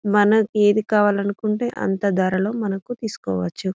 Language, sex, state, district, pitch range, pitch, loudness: Telugu, female, Telangana, Karimnagar, 195-215 Hz, 205 Hz, -20 LUFS